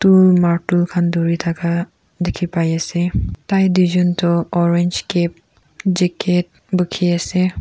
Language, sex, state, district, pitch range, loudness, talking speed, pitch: Nagamese, female, Nagaland, Kohima, 170-180 Hz, -17 LUFS, 125 wpm, 175 Hz